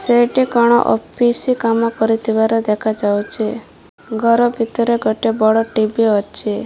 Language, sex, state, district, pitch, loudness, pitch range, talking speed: Odia, female, Odisha, Malkangiri, 225 Hz, -16 LUFS, 220-235 Hz, 115 wpm